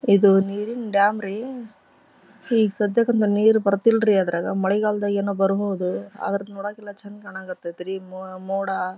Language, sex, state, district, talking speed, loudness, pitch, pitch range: Kannada, female, Karnataka, Dharwad, 140 wpm, -22 LUFS, 200 Hz, 190-210 Hz